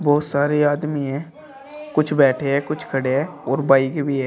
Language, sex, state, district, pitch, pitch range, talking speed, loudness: Hindi, male, Uttar Pradesh, Shamli, 145 Hz, 135-155 Hz, 195 wpm, -20 LUFS